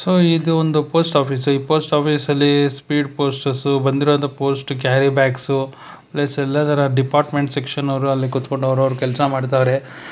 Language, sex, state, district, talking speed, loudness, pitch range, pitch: Kannada, male, Karnataka, Bangalore, 150 wpm, -18 LUFS, 135-145 Hz, 140 Hz